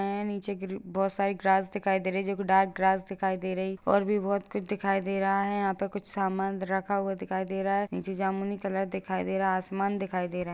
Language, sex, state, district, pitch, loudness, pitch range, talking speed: Hindi, female, Bihar, Jamui, 195 Hz, -29 LUFS, 190-200 Hz, 275 wpm